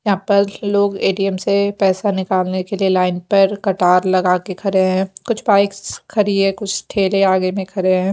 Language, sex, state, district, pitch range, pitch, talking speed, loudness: Hindi, female, Haryana, Jhajjar, 185-200 Hz, 195 Hz, 175 wpm, -17 LUFS